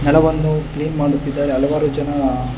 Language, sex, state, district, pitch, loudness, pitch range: Kannada, male, Karnataka, Bangalore, 145 Hz, -18 LUFS, 140-150 Hz